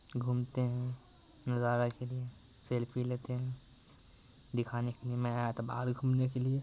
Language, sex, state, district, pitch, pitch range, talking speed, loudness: Hindi, male, Bihar, Muzaffarpur, 125 Hz, 120-125 Hz, 165 wpm, -36 LUFS